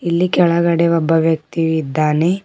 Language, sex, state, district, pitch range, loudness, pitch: Kannada, female, Karnataka, Bidar, 160-170 Hz, -16 LUFS, 165 Hz